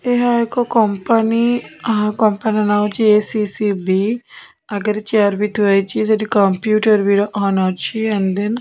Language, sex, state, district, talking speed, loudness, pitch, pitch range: Odia, female, Odisha, Khordha, 155 wpm, -16 LUFS, 210 Hz, 205-225 Hz